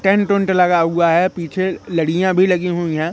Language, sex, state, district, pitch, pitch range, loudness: Hindi, male, Madhya Pradesh, Katni, 180 Hz, 170-185 Hz, -16 LUFS